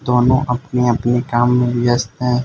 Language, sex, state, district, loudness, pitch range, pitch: Hindi, male, Arunachal Pradesh, Lower Dibang Valley, -16 LUFS, 120-125 Hz, 125 Hz